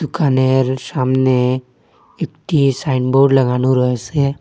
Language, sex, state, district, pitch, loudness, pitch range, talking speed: Bengali, male, Assam, Hailakandi, 130 Hz, -16 LUFS, 130-145 Hz, 80 wpm